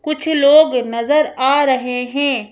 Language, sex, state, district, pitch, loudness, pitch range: Hindi, female, Madhya Pradesh, Bhopal, 280 Hz, -15 LUFS, 250-300 Hz